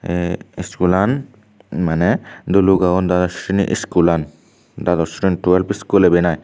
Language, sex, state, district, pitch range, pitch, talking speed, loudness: Chakma, male, Tripura, Unakoti, 85-100 Hz, 90 Hz, 140 wpm, -17 LUFS